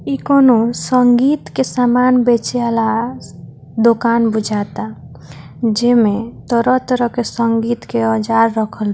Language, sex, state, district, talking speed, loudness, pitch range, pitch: Bhojpuri, female, Bihar, Muzaffarpur, 115 wpm, -15 LUFS, 220-245 Hz, 230 Hz